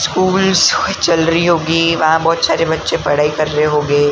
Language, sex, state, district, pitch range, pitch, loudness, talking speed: Hindi, male, Maharashtra, Gondia, 150-165 Hz, 165 Hz, -13 LUFS, 205 wpm